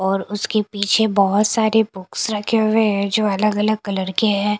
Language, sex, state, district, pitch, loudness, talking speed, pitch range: Hindi, female, Punjab, Kapurthala, 210 Hz, -18 LUFS, 195 wpm, 200-215 Hz